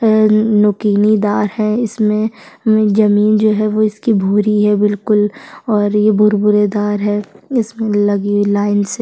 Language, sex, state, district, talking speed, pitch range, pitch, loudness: Hindi, female, Chhattisgarh, Sukma, 155 wpm, 205-215 Hz, 210 Hz, -14 LUFS